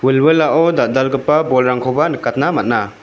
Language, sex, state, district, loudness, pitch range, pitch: Garo, male, Meghalaya, West Garo Hills, -14 LUFS, 130-155 Hz, 135 Hz